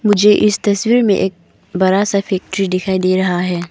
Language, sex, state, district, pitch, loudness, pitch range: Hindi, female, Arunachal Pradesh, Papum Pare, 195 Hz, -15 LUFS, 185-205 Hz